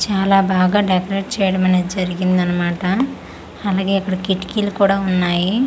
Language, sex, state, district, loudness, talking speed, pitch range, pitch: Telugu, female, Andhra Pradesh, Manyam, -17 LUFS, 125 wpm, 185-195 Hz, 190 Hz